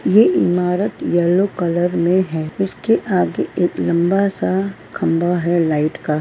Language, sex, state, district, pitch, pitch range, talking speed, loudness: Hindi, female, Uttar Pradesh, Varanasi, 175 Hz, 170-190 Hz, 145 wpm, -18 LUFS